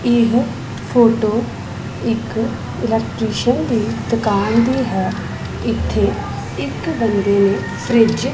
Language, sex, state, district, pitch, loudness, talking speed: Punjabi, female, Punjab, Pathankot, 215 Hz, -18 LUFS, 100 wpm